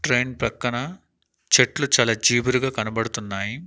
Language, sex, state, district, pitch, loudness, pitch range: Telugu, male, Andhra Pradesh, Annamaya, 120 Hz, -21 LUFS, 115-130 Hz